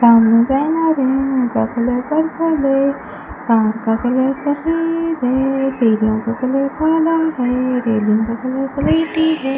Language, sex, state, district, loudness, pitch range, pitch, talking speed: Hindi, female, Rajasthan, Bikaner, -16 LUFS, 235-310 Hz, 270 Hz, 140 wpm